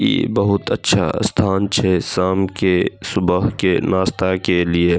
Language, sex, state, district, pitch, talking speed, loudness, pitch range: Maithili, male, Bihar, Saharsa, 95 Hz, 145 wpm, -17 LUFS, 90-95 Hz